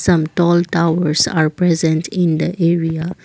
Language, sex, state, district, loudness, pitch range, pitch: English, female, Assam, Kamrup Metropolitan, -16 LUFS, 160-175 Hz, 170 Hz